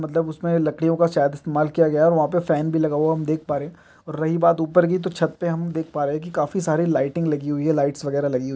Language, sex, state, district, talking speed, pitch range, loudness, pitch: Hindi, male, Chhattisgarh, Bilaspur, 350 wpm, 150-165 Hz, -21 LUFS, 160 Hz